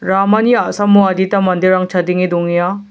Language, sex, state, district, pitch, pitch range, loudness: Garo, male, Meghalaya, South Garo Hills, 190 Hz, 180-200 Hz, -13 LUFS